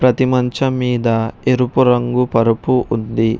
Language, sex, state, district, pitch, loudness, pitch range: Telugu, male, Telangana, Hyderabad, 125 Hz, -16 LUFS, 115-125 Hz